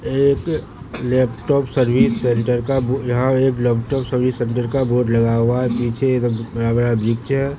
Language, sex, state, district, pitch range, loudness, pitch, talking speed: Hindi, male, Bihar, Katihar, 120-135 Hz, -18 LUFS, 125 Hz, 175 wpm